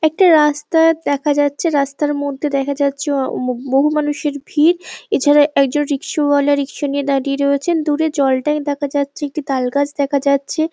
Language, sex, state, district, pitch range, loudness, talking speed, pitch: Bengali, female, West Bengal, Paschim Medinipur, 280-300 Hz, -17 LUFS, 175 wpm, 285 Hz